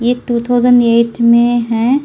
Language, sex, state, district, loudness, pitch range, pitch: Hindi, female, Delhi, New Delhi, -12 LUFS, 235-245 Hz, 240 Hz